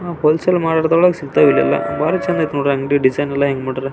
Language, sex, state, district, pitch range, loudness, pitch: Kannada, male, Karnataka, Belgaum, 140-170 Hz, -16 LUFS, 150 Hz